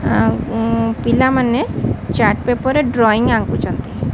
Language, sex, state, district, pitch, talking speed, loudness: Odia, female, Odisha, Sambalpur, 230 Hz, 85 wpm, -16 LUFS